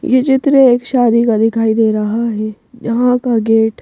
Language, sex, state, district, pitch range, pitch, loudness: Hindi, female, Madhya Pradesh, Bhopal, 220-250 Hz, 230 Hz, -13 LUFS